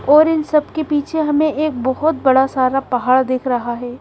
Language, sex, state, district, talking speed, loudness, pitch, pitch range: Hindi, female, Madhya Pradesh, Bhopal, 210 wpm, -16 LUFS, 270 Hz, 255-305 Hz